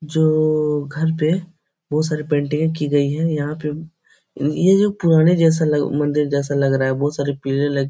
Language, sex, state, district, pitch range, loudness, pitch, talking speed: Hindi, male, Bihar, Supaul, 145-160 Hz, -19 LUFS, 150 Hz, 195 wpm